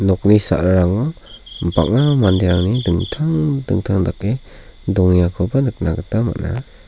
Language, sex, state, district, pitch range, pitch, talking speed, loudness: Garo, male, Meghalaya, South Garo Hills, 90-125 Hz, 100 Hz, 95 wpm, -17 LUFS